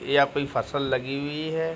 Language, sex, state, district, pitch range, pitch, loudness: Hindi, male, Bihar, Begusarai, 140-155 Hz, 145 Hz, -26 LUFS